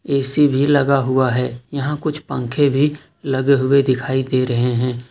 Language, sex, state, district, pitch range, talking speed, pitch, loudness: Hindi, male, Jharkhand, Ranchi, 125-145 Hz, 175 wpm, 135 Hz, -18 LUFS